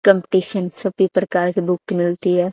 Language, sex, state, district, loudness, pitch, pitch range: Hindi, female, Haryana, Charkhi Dadri, -19 LUFS, 185 Hz, 180-190 Hz